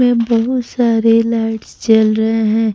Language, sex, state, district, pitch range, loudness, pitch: Hindi, female, Bihar, Kaimur, 220-235 Hz, -14 LUFS, 225 Hz